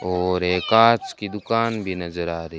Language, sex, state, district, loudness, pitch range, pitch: Hindi, male, Rajasthan, Bikaner, -21 LUFS, 90-110 Hz, 90 Hz